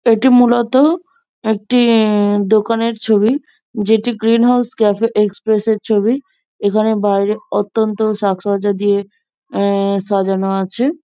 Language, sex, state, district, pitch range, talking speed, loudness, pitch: Bengali, female, West Bengal, Jhargram, 205-240 Hz, 125 wpm, -15 LUFS, 220 Hz